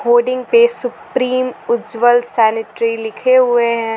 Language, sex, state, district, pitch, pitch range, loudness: Hindi, female, Jharkhand, Garhwa, 240 Hz, 230-250 Hz, -15 LUFS